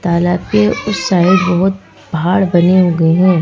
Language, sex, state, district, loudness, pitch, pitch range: Hindi, female, Madhya Pradesh, Bhopal, -12 LUFS, 180 Hz, 175-185 Hz